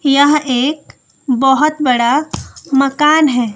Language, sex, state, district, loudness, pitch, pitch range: Hindi, female, Bihar, West Champaran, -13 LUFS, 275 Hz, 255-300 Hz